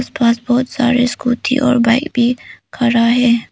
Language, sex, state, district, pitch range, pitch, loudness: Hindi, female, Arunachal Pradesh, Papum Pare, 240-255 Hz, 245 Hz, -14 LUFS